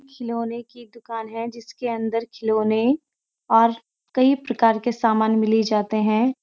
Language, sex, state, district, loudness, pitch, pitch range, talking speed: Hindi, female, Uttarakhand, Uttarkashi, -22 LUFS, 230 Hz, 220-240 Hz, 150 wpm